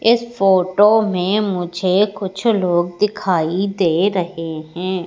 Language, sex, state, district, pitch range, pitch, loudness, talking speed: Hindi, female, Madhya Pradesh, Katni, 175-205 Hz, 190 Hz, -17 LUFS, 120 wpm